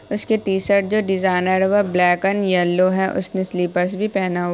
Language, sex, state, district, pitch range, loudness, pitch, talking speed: Hindi, female, Bihar, Saharsa, 180-200 Hz, -19 LUFS, 190 Hz, 210 wpm